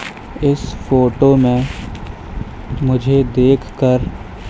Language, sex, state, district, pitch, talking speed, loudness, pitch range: Hindi, male, Madhya Pradesh, Katni, 125 Hz, 80 wpm, -15 LUFS, 105-135 Hz